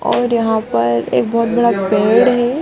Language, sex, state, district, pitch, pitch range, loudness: Hindi, female, Bihar, Gaya, 230 Hz, 200-240 Hz, -14 LUFS